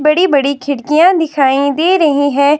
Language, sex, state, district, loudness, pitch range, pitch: Hindi, female, Himachal Pradesh, Shimla, -12 LUFS, 280-320 Hz, 290 Hz